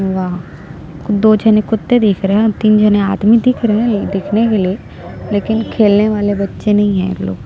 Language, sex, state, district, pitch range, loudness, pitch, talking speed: Hindi, female, Chhattisgarh, Jashpur, 195-220 Hz, -13 LUFS, 205 Hz, 195 wpm